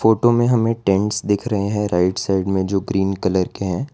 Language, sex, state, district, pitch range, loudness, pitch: Hindi, male, Gujarat, Valsad, 95-110 Hz, -19 LUFS, 100 Hz